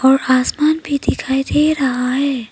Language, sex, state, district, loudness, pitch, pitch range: Hindi, female, Arunachal Pradesh, Papum Pare, -16 LUFS, 265 Hz, 260-295 Hz